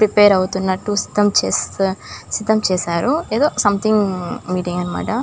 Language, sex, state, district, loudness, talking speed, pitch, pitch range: Telugu, female, Andhra Pradesh, Chittoor, -18 LUFS, 105 wpm, 200 Hz, 185-215 Hz